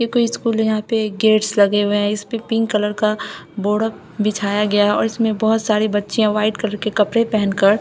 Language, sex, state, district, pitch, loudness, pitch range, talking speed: Hindi, female, Bihar, Katihar, 215 Hz, -18 LUFS, 205-220 Hz, 230 wpm